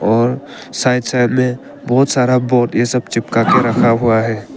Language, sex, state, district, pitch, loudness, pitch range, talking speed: Hindi, male, Arunachal Pradesh, Papum Pare, 125 Hz, -14 LUFS, 120-125 Hz, 185 wpm